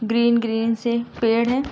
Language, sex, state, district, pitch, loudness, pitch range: Hindi, female, Uttar Pradesh, Gorakhpur, 235 Hz, -21 LUFS, 225-235 Hz